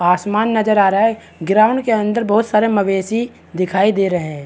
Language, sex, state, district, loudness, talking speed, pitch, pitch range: Hindi, male, Chhattisgarh, Bastar, -16 LUFS, 200 wpm, 210 Hz, 190-220 Hz